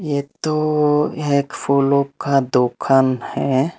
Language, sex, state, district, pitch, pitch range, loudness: Hindi, male, Tripura, Unakoti, 140 Hz, 135-150 Hz, -18 LUFS